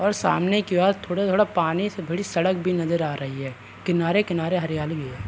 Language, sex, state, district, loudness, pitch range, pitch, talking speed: Hindi, male, Bihar, Araria, -23 LUFS, 160-190 Hz, 175 Hz, 215 wpm